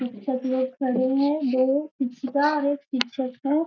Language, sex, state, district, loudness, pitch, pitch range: Hindi, female, Bihar, Gaya, -25 LUFS, 265 Hz, 260-285 Hz